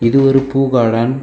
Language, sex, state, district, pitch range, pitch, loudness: Tamil, male, Tamil Nadu, Kanyakumari, 120-135 Hz, 135 Hz, -13 LUFS